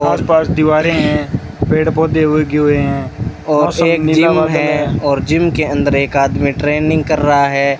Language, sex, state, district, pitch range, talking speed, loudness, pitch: Hindi, male, Rajasthan, Bikaner, 140-155 Hz, 170 wpm, -13 LUFS, 150 Hz